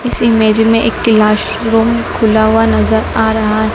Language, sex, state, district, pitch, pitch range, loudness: Hindi, female, Madhya Pradesh, Dhar, 220 Hz, 220-225 Hz, -11 LUFS